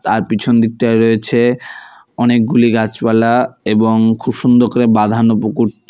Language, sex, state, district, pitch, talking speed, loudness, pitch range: Bengali, male, West Bengal, Alipurduar, 115 Hz, 120 wpm, -13 LUFS, 110-120 Hz